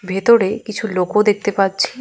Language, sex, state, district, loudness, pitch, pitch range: Bengali, female, Jharkhand, Jamtara, -16 LUFS, 205 Hz, 195-215 Hz